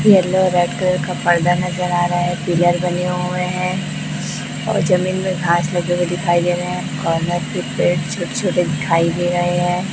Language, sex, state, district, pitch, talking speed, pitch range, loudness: Hindi, male, Chhattisgarh, Raipur, 175 Hz, 200 wpm, 175-180 Hz, -18 LUFS